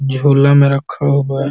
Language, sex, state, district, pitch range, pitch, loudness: Hindi, male, Uttar Pradesh, Varanasi, 135-140 Hz, 140 Hz, -13 LUFS